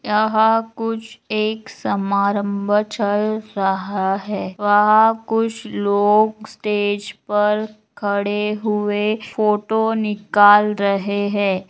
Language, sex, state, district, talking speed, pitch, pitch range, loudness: Magahi, female, Bihar, Gaya, 105 wpm, 210 Hz, 205-215 Hz, -18 LUFS